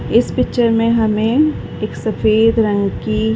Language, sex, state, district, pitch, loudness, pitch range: Hindi, female, Uttar Pradesh, Varanasi, 220 Hz, -16 LUFS, 215-230 Hz